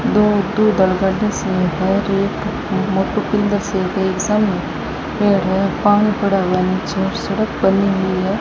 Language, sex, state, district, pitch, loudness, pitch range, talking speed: Hindi, female, Rajasthan, Bikaner, 195 Hz, -17 LUFS, 190-205 Hz, 95 wpm